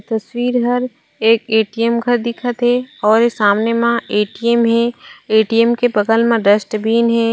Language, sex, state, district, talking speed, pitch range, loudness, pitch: Chhattisgarhi, female, Chhattisgarh, Raigarh, 215 wpm, 220-240 Hz, -15 LUFS, 230 Hz